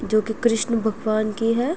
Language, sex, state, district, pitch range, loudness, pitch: Hindi, female, Uttar Pradesh, Jyotiba Phule Nagar, 215-235 Hz, -22 LUFS, 225 Hz